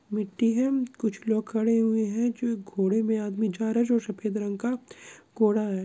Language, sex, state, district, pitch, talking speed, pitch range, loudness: Hindi, female, Andhra Pradesh, Krishna, 220 Hz, 215 wpm, 210-235 Hz, -27 LUFS